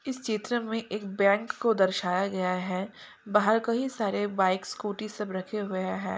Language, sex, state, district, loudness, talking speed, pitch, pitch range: Hindi, female, Bihar, Purnia, -28 LUFS, 175 wpm, 205 Hz, 190-220 Hz